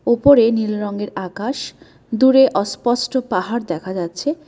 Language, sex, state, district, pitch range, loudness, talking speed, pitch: Bengali, female, West Bengal, Alipurduar, 200-260 Hz, -18 LUFS, 120 wpm, 230 Hz